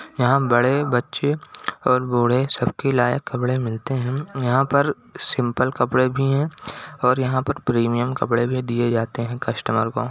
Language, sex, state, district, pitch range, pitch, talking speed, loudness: Hindi, male, Chhattisgarh, Rajnandgaon, 120-135 Hz, 125 Hz, 165 wpm, -21 LUFS